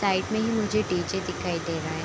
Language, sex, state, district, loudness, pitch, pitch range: Hindi, female, Bihar, Kishanganj, -27 LUFS, 190 Hz, 170-215 Hz